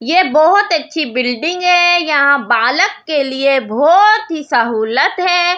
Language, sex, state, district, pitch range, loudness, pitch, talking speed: Hindi, female, Delhi, New Delhi, 265-360 Hz, -12 LUFS, 310 Hz, 140 wpm